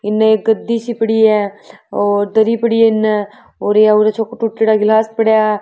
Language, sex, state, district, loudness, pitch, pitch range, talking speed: Marwari, female, Rajasthan, Churu, -14 LUFS, 220 Hz, 210-225 Hz, 190 wpm